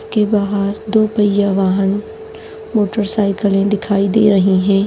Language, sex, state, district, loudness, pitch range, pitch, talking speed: Hindi, female, Maharashtra, Chandrapur, -15 LUFS, 200-215 Hz, 205 Hz, 125 wpm